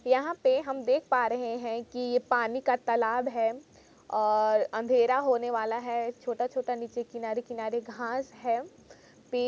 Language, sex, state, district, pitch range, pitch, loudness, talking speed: Hindi, female, Chhattisgarh, Kabirdham, 230-255 Hz, 240 Hz, -29 LUFS, 165 wpm